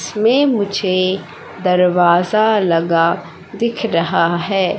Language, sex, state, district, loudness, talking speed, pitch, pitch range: Hindi, female, Madhya Pradesh, Katni, -16 LUFS, 90 wpm, 185 Hz, 175-215 Hz